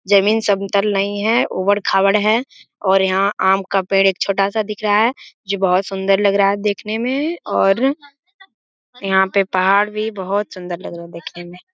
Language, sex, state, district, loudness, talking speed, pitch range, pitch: Hindi, male, Bihar, Jamui, -17 LUFS, 195 wpm, 195-215 Hz, 200 Hz